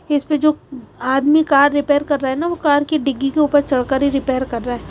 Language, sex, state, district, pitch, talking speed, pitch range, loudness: Hindi, female, Haryana, Charkhi Dadri, 285 Hz, 270 wpm, 265-300 Hz, -17 LUFS